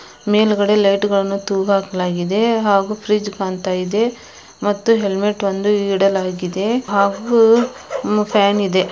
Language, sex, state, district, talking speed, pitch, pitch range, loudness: Kannada, female, Karnataka, Belgaum, 110 wpm, 200 Hz, 195-210 Hz, -17 LUFS